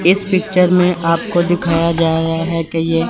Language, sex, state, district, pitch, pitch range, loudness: Hindi, male, Chandigarh, Chandigarh, 170 Hz, 165-180 Hz, -15 LUFS